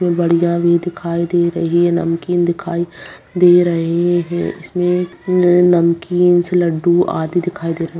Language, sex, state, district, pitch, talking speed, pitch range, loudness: Hindi, female, Bihar, Bhagalpur, 175 Hz, 150 wpm, 170-175 Hz, -15 LUFS